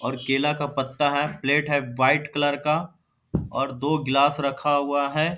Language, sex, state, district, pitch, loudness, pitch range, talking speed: Hindi, male, Bihar, Darbhanga, 145 Hz, -23 LUFS, 135-150 Hz, 180 wpm